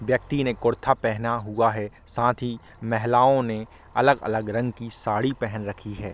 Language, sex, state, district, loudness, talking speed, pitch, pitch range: Hindi, male, Bihar, Kishanganj, -24 LUFS, 165 wpm, 115 Hz, 110-125 Hz